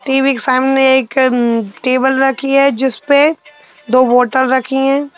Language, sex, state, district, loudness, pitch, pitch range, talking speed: Hindi, male, Madhya Pradesh, Bhopal, -13 LUFS, 265 Hz, 255-275 Hz, 150 wpm